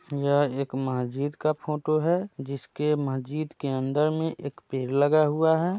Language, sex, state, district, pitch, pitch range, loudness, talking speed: Hindi, male, Bihar, Muzaffarpur, 145 Hz, 135-155 Hz, -26 LUFS, 165 wpm